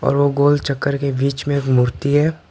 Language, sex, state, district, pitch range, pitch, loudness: Hindi, male, Tripura, Dhalai, 140-145 Hz, 140 Hz, -18 LUFS